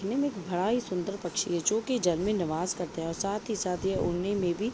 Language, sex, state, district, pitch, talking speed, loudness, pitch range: Hindi, female, Jharkhand, Jamtara, 190 Hz, 280 wpm, -30 LUFS, 175-210 Hz